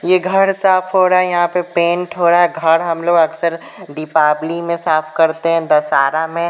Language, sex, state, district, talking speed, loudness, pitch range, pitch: Hindi, female, Bihar, Patna, 220 wpm, -15 LUFS, 160-175 Hz, 170 Hz